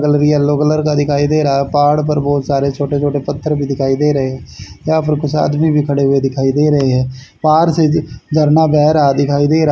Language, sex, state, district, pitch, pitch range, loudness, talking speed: Hindi, male, Haryana, Charkhi Dadri, 145 Hz, 140-150 Hz, -14 LUFS, 255 wpm